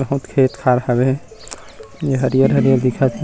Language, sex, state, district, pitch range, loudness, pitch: Chhattisgarhi, male, Chhattisgarh, Rajnandgaon, 125-135 Hz, -17 LUFS, 130 Hz